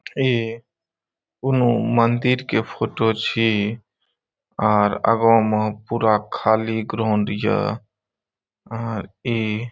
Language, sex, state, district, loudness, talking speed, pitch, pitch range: Maithili, male, Bihar, Saharsa, -20 LUFS, 100 wpm, 115 Hz, 110-115 Hz